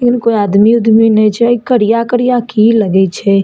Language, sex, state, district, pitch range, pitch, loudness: Maithili, female, Bihar, Samastipur, 210-235 Hz, 225 Hz, -10 LUFS